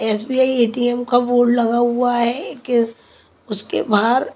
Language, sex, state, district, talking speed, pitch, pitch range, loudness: Hindi, female, Punjab, Kapurthala, 135 wpm, 240 Hz, 230-245 Hz, -18 LUFS